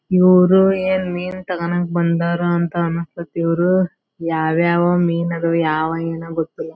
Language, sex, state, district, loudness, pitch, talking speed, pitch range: Kannada, female, Karnataka, Belgaum, -18 LUFS, 170 Hz, 125 wpm, 165-180 Hz